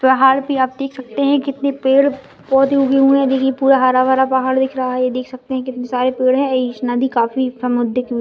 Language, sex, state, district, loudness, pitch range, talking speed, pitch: Hindi, female, Maharashtra, Sindhudurg, -16 LUFS, 255-270 Hz, 235 wpm, 260 Hz